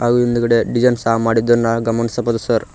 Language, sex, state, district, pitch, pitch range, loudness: Kannada, male, Karnataka, Koppal, 115 Hz, 115-120 Hz, -16 LUFS